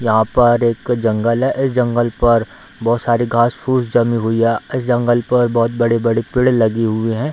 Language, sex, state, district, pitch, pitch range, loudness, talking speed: Hindi, male, Bihar, Darbhanga, 120 Hz, 115-120 Hz, -16 LUFS, 215 wpm